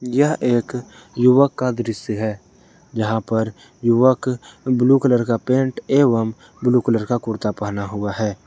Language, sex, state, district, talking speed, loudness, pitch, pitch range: Hindi, male, Jharkhand, Garhwa, 150 wpm, -19 LUFS, 120 Hz, 110-130 Hz